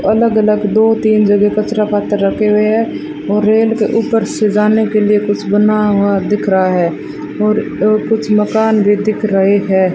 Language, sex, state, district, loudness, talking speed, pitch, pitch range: Hindi, female, Rajasthan, Bikaner, -13 LUFS, 185 wpm, 210 Hz, 205-215 Hz